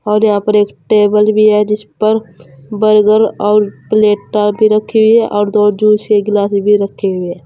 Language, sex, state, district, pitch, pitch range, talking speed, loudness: Hindi, female, Uttar Pradesh, Saharanpur, 210 Hz, 205-215 Hz, 200 wpm, -12 LUFS